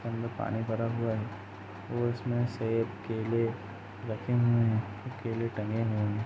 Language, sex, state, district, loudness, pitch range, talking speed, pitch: Hindi, male, Uttar Pradesh, Jalaun, -32 LUFS, 105-115 Hz, 165 wpm, 115 Hz